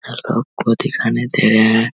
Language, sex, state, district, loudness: Hindi, male, Bihar, Vaishali, -16 LUFS